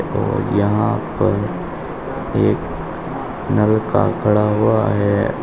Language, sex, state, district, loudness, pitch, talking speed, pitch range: Hindi, male, Uttar Pradesh, Shamli, -18 LUFS, 105 Hz, 100 wpm, 100-110 Hz